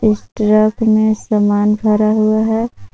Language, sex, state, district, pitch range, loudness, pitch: Hindi, female, Jharkhand, Palamu, 210-220 Hz, -14 LUFS, 215 Hz